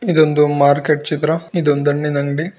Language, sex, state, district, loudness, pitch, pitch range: Kannada, female, Karnataka, Bijapur, -16 LUFS, 150 Hz, 145-160 Hz